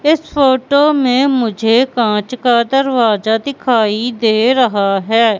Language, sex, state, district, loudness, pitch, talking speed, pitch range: Hindi, female, Madhya Pradesh, Katni, -13 LUFS, 245 Hz, 120 wpm, 220-265 Hz